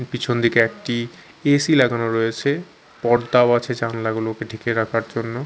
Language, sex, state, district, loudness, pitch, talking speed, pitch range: Bengali, male, Chhattisgarh, Raipur, -20 LUFS, 120 Hz, 130 wpm, 115-125 Hz